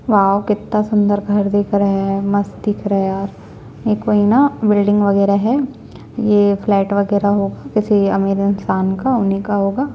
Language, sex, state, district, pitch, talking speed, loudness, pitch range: Hindi, female, Chhattisgarh, Sukma, 205 Hz, 175 wpm, -16 LUFS, 200-210 Hz